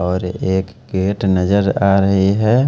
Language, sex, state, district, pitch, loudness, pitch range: Hindi, male, Haryana, Jhajjar, 95 Hz, -16 LUFS, 95-100 Hz